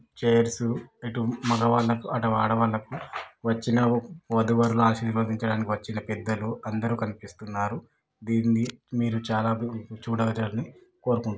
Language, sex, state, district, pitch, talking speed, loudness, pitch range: Telugu, male, Telangana, Nalgonda, 115 Hz, 105 wpm, -27 LUFS, 110-120 Hz